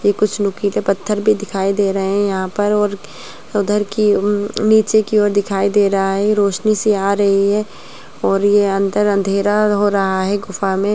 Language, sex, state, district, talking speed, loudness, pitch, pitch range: Hindi, female, Bihar, Muzaffarpur, 195 wpm, -16 LUFS, 205 Hz, 195-210 Hz